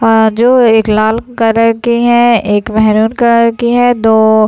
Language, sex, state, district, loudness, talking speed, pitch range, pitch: Hindi, male, Chhattisgarh, Raigarh, -9 LUFS, 175 wpm, 220-235 Hz, 225 Hz